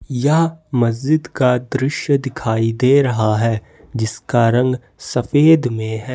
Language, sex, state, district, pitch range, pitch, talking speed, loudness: Hindi, male, Jharkhand, Ranchi, 115-140 Hz, 125 Hz, 125 wpm, -17 LUFS